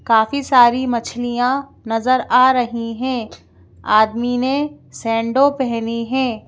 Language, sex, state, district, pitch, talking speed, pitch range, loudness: Hindi, female, Madhya Pradesh, Bhopal, 245 Hz, 110 wpm, 230-255 Hz, -17 LUFS